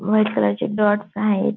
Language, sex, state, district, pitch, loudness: Marathi, female, Maharashtra, Dhule, 205 Hz, -20 LUFS